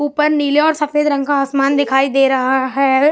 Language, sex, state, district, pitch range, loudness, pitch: Hindi, male, Bihar, West Champaran, 270-295 Hz, -15 LUFS, 280 Hz